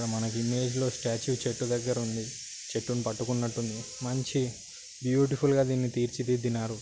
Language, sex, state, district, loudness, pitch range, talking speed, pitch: Telugu, male, Telangana, Karimnagar, -30 LUFS, 115-130 Hz, 140 wpm, 120 Hz